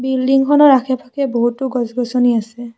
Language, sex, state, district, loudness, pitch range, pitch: Assamese, female, Assam, Kamrup Metropolitan, -15 LUFS, 240-270 Hz, 255 Hz